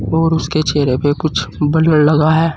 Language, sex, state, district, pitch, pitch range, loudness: Hindi, male, Uttar Pradesh, Saharanpur, 155 Hz, 145-160 Hz, -14 LUFS